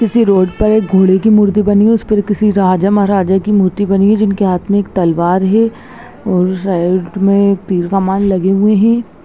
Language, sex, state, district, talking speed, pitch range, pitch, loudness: Hindi, female, Bihar, Gaya, 225 wpm, 190-210 Hz, 200 Hz, -12 LUFS